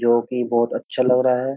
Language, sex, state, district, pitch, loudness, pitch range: Hindi, male, Uttar Pradesh, Jyotiba Phule Nagar, 125 Hz, -20 LUFS, 120-125 Hz